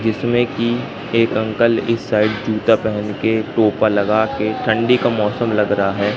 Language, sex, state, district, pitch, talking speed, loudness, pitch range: Hindi, male, Madhya Pradesh, Katni, 110 Hz, 175 wpm, -17 LUFS, 105-115 Hz